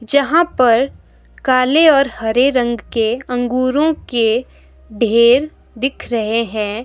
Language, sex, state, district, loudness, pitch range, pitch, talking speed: Hindi, female, Himachal Pradesh, Shimla, -15 LUFS, 230-270 Hz, 245 Hz, 115 wpm